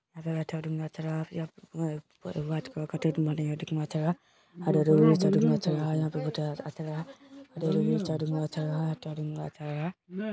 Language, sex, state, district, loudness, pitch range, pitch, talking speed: Hindi, male, Bihar, Bhagalpur, -30 LUFS, 155-165 Hz, 155 Hz, 130 wpm